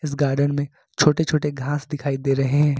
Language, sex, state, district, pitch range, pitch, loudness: Hindi, male, Jharkhand, Ranchi, 140-150 Hz, 145 Hz, -22 LUFS